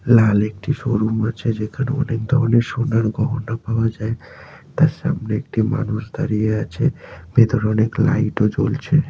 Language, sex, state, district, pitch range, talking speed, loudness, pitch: Bengali, male, West Bengal, Malda, 110-130 Hz, 150 wpm, -19 LUFS, 115 Hz